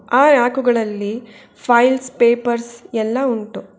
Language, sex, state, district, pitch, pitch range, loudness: Kannada, female, Karnataka, Bangalore, 240 Hz, 230-255 Hz, -17 LUFS